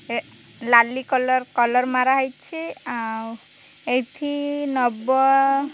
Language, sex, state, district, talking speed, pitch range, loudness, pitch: Odia, female, Odisha, Khordha, 95 wpm, 240-275 Hz, -21 LUFS, 255 Hz